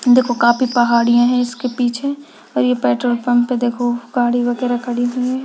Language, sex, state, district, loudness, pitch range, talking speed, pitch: Hindi, female, Uttarakhand, Uttarkashi, -17 LUFS, 240-250 Hz, 185 wpm, 245 Hz